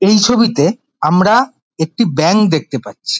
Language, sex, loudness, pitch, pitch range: Bengali, male, -13 LUFS, 200 Hz, 160-230 Hz